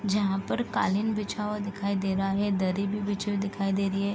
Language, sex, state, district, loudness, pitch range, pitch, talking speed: Hindi, female, Bihar, East Champaran, -28 LUFS, 195-205 Hz, 200 Hz, 245 wpm